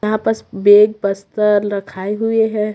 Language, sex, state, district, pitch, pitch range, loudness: Hindi, female, Chhattisgarh, Raipur, 210 Hz, 200-215 Hz, -15 LUFS